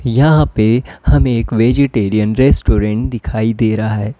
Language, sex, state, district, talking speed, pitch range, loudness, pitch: Hindi, female, Uttar Pradesh, Lalitpur, 145 wpm, 110-125 Hz, -14 LUFS, 115 Hz